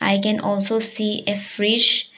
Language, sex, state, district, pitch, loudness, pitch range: English, female, Arunachal Pradesh, Papum Pare, 215 Hz, -18 LUFS, 205-225 Hz